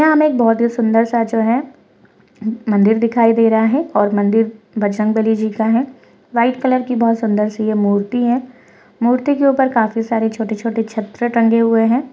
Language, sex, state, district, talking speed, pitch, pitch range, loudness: Hindi, female, Rajasthan, Churu, 200 wpm, 225 Hz, 220-245 Hz, -16 LUFS